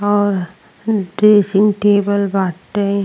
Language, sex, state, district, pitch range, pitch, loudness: Bhojpuri, female, Uttar Pradesh, Ghazipur, 195-205 Hz, 200 Hz, -15 LUFS